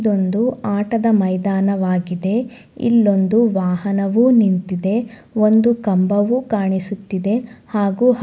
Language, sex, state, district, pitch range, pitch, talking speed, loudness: Kannada, female, Karnataka, Shimoga, 195-230 Hz, 205 Hz, 75 wpm, -17 LUFS